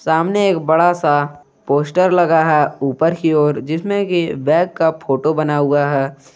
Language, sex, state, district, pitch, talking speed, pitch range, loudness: Hindi, male, Jharkhand, Garhwa, 155 Hz, 170 wpm, 145-170 Hz, -16 LUFS